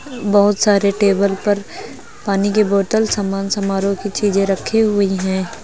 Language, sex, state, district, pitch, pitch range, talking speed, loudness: Hindi, female, Uttar Pradesh, Lucknow, 200 Hz, 195-210 Hz, 150 wpm, -16 LUFS